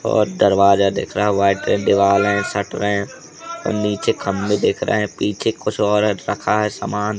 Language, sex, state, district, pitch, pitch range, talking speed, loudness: Hindi, male, Madhya Pradesh, Katni, 100 Hz, 100-105 Hz, 185 wpm, -18 LUFS